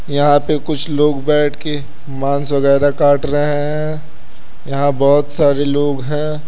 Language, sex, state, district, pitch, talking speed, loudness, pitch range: Hindi, male, Uttar Pradesh, Lucknow, 145 Hz, 150 wpm, -16 LUFS, 140-150 Hz